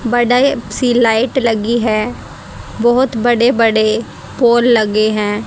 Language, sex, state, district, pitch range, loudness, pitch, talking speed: Hindi, female, Haryana, Rohtak, 215-240 Hz, -13 LUFS, 230 Hz, 120 wpm